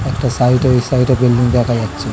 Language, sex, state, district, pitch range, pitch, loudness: Bengali, male, West Bengal, Dakshin Dinajpur, 120-130 Hz, 125 Hz, -14 LUFS